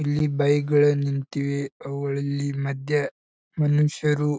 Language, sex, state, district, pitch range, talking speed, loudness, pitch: Kannada, male, Karnataka, Bijapur, 140-150 Hz, 110 wpm, -24 LUFS, 145 Hz